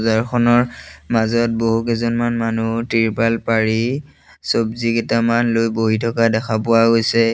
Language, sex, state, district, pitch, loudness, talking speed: Assamese, male, Assam, Sonitpur, 115 Hz, -18 LUFS, 105 wpm